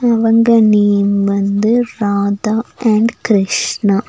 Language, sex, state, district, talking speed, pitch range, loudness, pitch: Tamil, female, Tamil Nadu, Nilgiris, 90 wpm, 200-230 Hz, -13 LUFS, 215 Hz